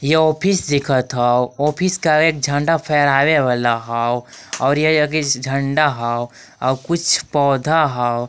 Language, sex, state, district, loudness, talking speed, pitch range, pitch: Magahi, male, Jharkhand, Palamu, -17 LUFS, 135 wpm, 125-155 Hz, 140 Hz